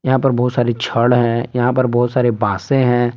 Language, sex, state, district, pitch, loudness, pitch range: Hindi, male, Jharkhand, Palamu, 120 Hz, -16 LUFS, 120-125 Hz